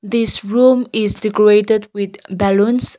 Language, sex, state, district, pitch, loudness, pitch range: English, female, Nagaland, Kohima, 210 Hz, -15 LUFS, 200-230 Hz